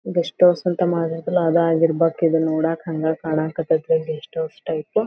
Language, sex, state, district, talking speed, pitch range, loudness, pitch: Kannada, female, Karnataka, Belgaum, 165 wpm, 160-170 Hz, -20 LUFS, 165 Hz